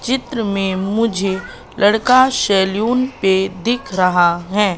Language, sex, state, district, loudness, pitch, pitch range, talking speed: Hindi, female, Madhya Pradesh, Katni, -16 LUFS, 205 Hz, 190-240 Hz, 115 wpm